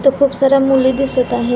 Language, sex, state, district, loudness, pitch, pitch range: Marathi, female, Maharashtra, Pune, -14 LUFS, 270 Hz, 255-275 Hz